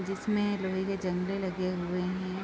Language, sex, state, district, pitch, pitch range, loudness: Hindi, female, Uttar Pradesh, Jalaun, 190 Hz, 185-195 Hz, -32 LUFS